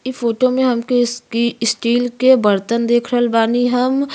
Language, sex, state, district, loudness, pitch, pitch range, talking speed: Bhojpuri, female, Uttar Pradesh, Gorakhpur, -16 LUFS, 240 Hz, 235-255 Hz, 175 wpm